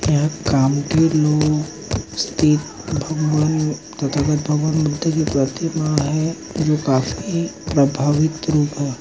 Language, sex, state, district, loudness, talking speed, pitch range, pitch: Hindi, male, Maharashtra, Nagpur, -19 LUFS, 105 wpm, 145-155 Hz, 150 Hz